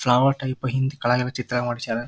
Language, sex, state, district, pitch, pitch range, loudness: Kannada, male, Karnataka, Dharwad, 125 Hz, 120-130 Hz, -23 LUFS